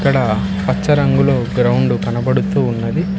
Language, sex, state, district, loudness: Telugu, male, Telangana, Hyderabad, -16 LUFS